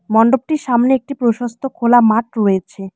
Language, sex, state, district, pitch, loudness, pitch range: Bengali, female, West Bengal, Alipurduar, 235 Hz, -15 LUFS, 220-260 Hz